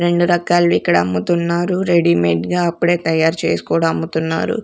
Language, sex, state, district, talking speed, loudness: Telugu, female, Andhra Pradesh, Sri Satya Sai, 140 wpm, -16 LUFS